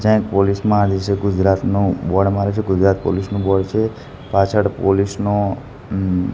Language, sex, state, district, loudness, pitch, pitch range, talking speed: Gujarati, male, Gujarat, Gandhinagar, -18 LUFS, 100 Hz, 95-105 Hz, 170 wpm